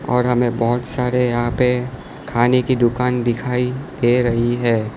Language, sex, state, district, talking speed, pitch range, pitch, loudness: Hindi, male, Gujarat, Valsad, 155 wpm, 120-125 Hz, 125 Hz, -18 LUFS